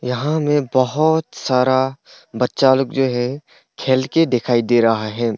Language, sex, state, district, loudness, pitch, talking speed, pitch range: Hindi, male, Arunachal Pradesh, Longding, -18 LUFS, 130 Hz, 155 wpm, 125-140 Hz